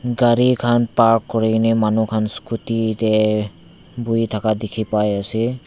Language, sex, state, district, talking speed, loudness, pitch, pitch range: Nagamese, male, Nagaland, Dimapur, 160 wpm, -18 LUFS, 115 Hz, 110-120 Hz